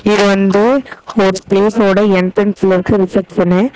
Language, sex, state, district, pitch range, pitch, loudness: Tamil, female, Tamil Nadu, Namakkal, 190-210 Hz, 200 Hz, -12 LUFS